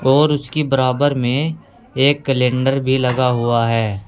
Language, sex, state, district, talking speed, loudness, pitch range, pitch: Hindi, male, Uttar Pradesh, Saharanpur, 145 wpm, -17 LUFS, 125-140 Hz, 130 Hz